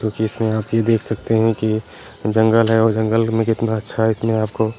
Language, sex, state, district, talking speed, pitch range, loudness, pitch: Kumaoni, male, Uttarakhand, Uttarkashi, 215 wpm, 110-115 Hz, -18 LUFS, 110 Hz